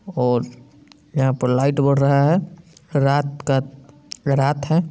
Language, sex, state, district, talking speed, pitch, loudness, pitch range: Hindi, male, Bihar, Saran, 135 wpm, 140 Hz, -19 LUFS, 135-150 Hz